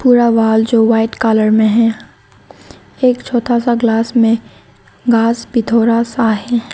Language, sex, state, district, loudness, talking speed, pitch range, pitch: Hindi, female, Arunachal Pradesh, Lower Dibang Valley, -13 LUFS, 150 wpm, 225-240 Hz, 230 Hz